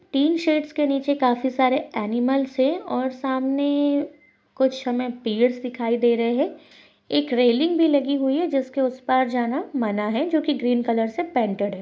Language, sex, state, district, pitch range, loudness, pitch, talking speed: Hindi, female, Maharashtra, Dhule, 245-290 Hz, -22 LUFS, 265 Hz, 185 wpm